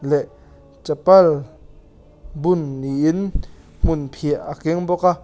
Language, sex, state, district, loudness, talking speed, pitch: Mizo, male, Mizoram, Aizawl, -19 LUFS, 105 wpm, 145 Hz